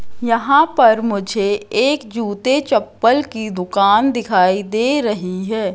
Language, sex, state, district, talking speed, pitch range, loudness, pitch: Hindi, female, Madhya Pradesh, Katni, 125 wpm, 205-265 Hz, -16 LUFS, 225 Hz